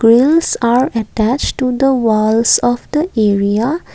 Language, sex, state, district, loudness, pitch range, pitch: English, female, Assam, Kamrup Metropolitan, -14 LUFS, 220-265 Hz, 235 Hz